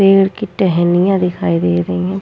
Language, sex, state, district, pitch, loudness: Hindi, female, Uttar Pradesh, Muzaffarnagar, 175 Hz, -14 LUFS